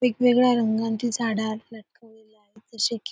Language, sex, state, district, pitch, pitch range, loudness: Marathi, female, Maharashtra, Solapur, 225 Hz, 220-240 Hz, -23 LUFS